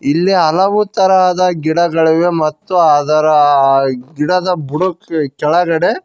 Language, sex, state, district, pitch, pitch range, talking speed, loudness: Kannada, male, Karnataka, Koppal, 165 Hz, 150-180 Hz, 90 wpm, -13 LUFS